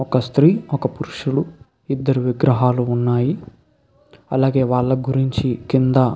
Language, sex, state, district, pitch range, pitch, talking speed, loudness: Telugu, male, Andhra Pradesh, Krishna, 125-135 Hz, 130 Hz, 115 wpm, -19 LUFS